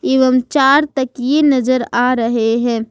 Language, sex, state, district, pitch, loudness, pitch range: Hindi, female, Jharkhand, Ranchi, 255 Hz, -14 LUFS, 240-270 Hz